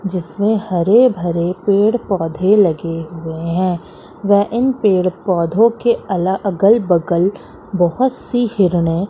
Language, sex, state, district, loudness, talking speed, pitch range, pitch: Hindi, female, Madhya Pradesh, Katni, -16 LUFS, 125 wpm, 175-210 Hz, 190 Hz